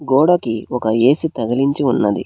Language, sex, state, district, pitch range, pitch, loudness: Telugu, male, Telangana, Hyderabad, 115-140 Hz, 125 Hz, -16 LUFS